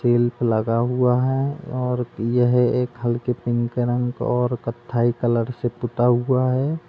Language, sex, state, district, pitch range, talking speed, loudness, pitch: Hindi, female, Goa, North and South Goa, 120-125 Hz, 150 wpm, -21 LUFS, 120 Hz